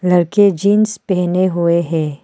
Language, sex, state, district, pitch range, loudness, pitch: Hindi, female, Arunachal Pradesh, Papum Pare, 170-200 Hz, -15 LUFS, 180 Hz